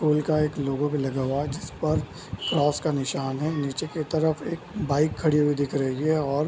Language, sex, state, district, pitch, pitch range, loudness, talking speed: Hindi, male, Bihar, Bhagalpur, 145 Hz, 140-155 Hz, -26 LUFS, 230 wpm